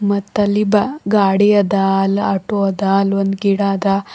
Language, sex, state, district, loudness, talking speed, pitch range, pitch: Kannada, female, Karnataka, Bidar, -16 LUFS, 160 wpm, 195-205 Hz, 200 Hz